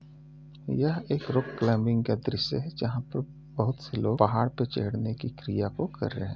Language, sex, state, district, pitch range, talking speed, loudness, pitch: Hindi, male, Uttar Pradesh, Muzaffarnagar, 110-145 Hz, 190 wpm, -29 LUFS, 130 Hz